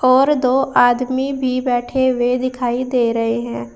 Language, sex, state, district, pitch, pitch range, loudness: Hindi, female, Uttar Pradesh, Saharanpur, 255 Hz, 240-260 Hz, -17 LUFS